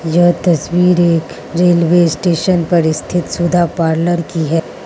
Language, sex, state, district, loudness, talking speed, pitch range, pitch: Hindi, female, Mizoram, Aizawl, -14 LUFS, 135 wpm, 165-175 Hz, 170 Hz